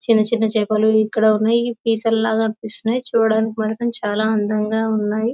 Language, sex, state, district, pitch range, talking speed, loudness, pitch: Telugu, female, Telangana, Nalgonda, 215-225 Hz, 110 wpm, -18 LUFS, 220 Hz